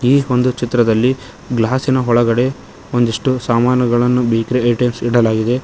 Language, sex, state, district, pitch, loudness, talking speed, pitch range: Kannada, male, Karnataka, Koppal, 120 Hz, -15 LUFS, 105 wpm, 120-125 Hz